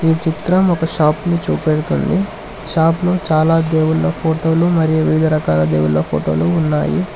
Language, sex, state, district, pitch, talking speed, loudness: Telugu, male, Telangana, Hyderabad, 160 Hz, 140 wpm, -16 LUFS